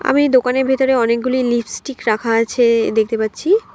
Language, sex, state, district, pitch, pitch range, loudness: Bengali, female, West Bengal, Alipurduar, 250 Hz, 230-265 Hz, -16 LUFS